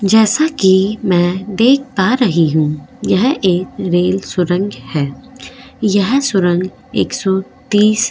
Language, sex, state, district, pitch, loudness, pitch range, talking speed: Hindi, female, Goa, North and South Goa, 195 Hz, -15 LUFS, 180-240 Hz, 110 wpm